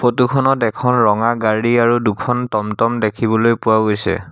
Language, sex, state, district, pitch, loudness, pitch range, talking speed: Assamese, male, Assam, Sonitpur, 115 Hz, -16 LUFS, 110-120 Hz, 165 wpm